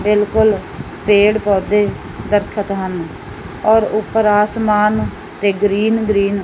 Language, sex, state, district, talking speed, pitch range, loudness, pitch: Punjabi, female, Punjab, Fazilka, 110 wpm, 200-215 Hz, -16 LUFS, 210 Hz